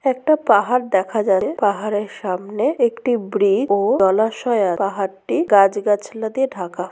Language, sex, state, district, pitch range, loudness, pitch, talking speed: Bengali, female, West Bengal, Purulia, 195-240 Hz, -18 LUFS, 205 Hz, 140 wpm